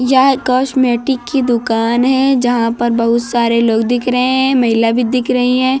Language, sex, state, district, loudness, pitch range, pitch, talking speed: Hindi, female, Uttar Pradesh, Lucknow, -13 LUFS, 235-260 Hz, 250 Hz, 185 wpm